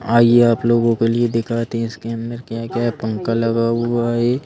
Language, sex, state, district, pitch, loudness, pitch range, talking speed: Hindi, male, Madhya Pradesh, Bhopal, 115 Hz, -18 LUFS, 115-120 Hz, 215 wpm